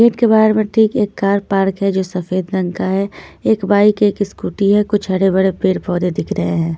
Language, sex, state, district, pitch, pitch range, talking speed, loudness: Hindi, female, Punjab, Fazilka, 200 Hz, 190-210 Hz, 245 wpm, -16 LUFS